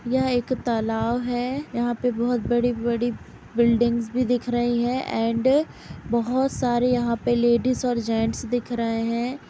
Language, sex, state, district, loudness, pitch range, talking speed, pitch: Hindi, female, Uttar Pradesh, Jalaun, -23 LUFS, 235-245 Hz, 150 wpm, 240 Hz